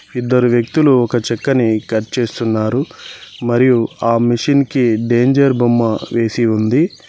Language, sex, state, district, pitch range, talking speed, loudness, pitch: Telugu, male, Telangana, Mahabubabad, 115-130 Hz, 120 wpm, -15 LUFS, 120 Hz